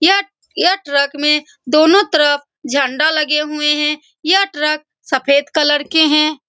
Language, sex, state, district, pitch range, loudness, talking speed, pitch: Hindi, female, Bihar, Saran, 290-315 Hz, -14 LUFS, 155 wpm, 300 Hz